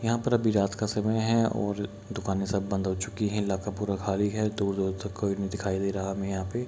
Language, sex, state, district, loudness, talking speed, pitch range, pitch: Hindi, male, Bihar, Kishanganj, -29 LUFS, 280 wpm, 95-105 Hz, 100 Hz